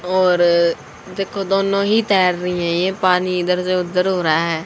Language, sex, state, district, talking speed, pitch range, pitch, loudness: Hindi, female, Haryana, Charkhi Dadri, 195 wpm, 175-190 Hz, 180 Hz, -17 LUFS